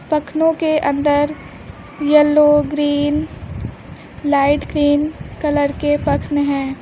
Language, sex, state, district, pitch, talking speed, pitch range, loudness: Hindi, female, Uttar Pradesh, Lucknow, 295 Hz, 95 wpm, 290-300 Hz, -16 LUFS